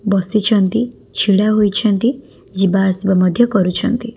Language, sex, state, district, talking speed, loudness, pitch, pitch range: Odia, female, Odisha, Khordha, 100 wpm, -15 LUFS, 205 Hz, 195-230 Hz